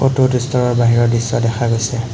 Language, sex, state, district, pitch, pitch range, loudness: Assamese, male, Assam, Hailakandi, 120 Hz, 115-125 Hz, -15 LUFS